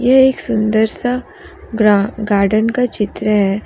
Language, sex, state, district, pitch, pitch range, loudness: Hindi, female, Jharkhand, Deoghar, 215 Hz, 210-245 Hz, -15 LUFS